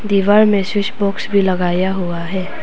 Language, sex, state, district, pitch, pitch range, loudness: Hindi, female, Arunachal Pradesh, Papum Pare, 195 Hz, 185-205 Hz, -16 LUFS